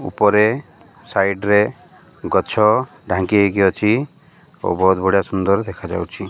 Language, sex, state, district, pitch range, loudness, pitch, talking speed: Odia, male, Odisha, Malkangiri, 95-110 Hz, -18 LUFS, 100 Hz, 115 wpm